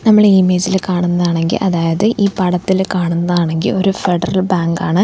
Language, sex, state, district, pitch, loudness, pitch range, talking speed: Malayalam, female, Kerala, Thiruvananthapuram, 185 Hz, -14 LUFS, 175-190 Hz, 130 wpm